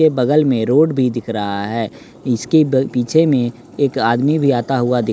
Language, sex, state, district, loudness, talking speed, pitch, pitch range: Hindi, male, Bihar, West Champaran, -16 LUFS, 210 wpm, 125 Hz, 120-140 Hz